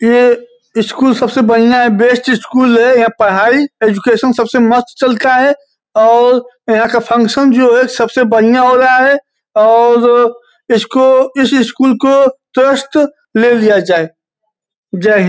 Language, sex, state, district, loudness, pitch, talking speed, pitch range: Hindi, male, Uttar Pradesh, Gorakhpur, -10 LUFS, 245 Hz, 145 wpm, 230-260 Hz